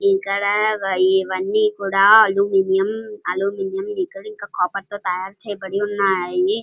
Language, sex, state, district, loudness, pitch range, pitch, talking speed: Telugu, female, Andhra Pradesh, Krishna, -19 LUFS, 190-210 Hz, 200 Hz, 100 wpm